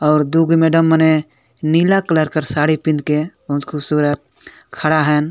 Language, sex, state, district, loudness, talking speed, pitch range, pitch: Sadri, male, Chhattisgarh, Jashpur, -16 LUFS, 170 wpm, 150-160 Hz, 155 Hz